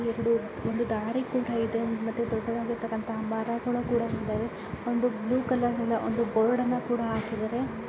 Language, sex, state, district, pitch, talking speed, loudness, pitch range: Kannada, female, Karnataka, Dharwad, 230 Hz, 130 wpm, -29 LUFS, 225-240 Hz